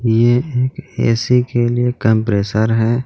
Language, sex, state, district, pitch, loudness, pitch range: Hindi, male, Jharkhand, Garhwa, 120 Hz, -16 LUFS, 115-125 Hz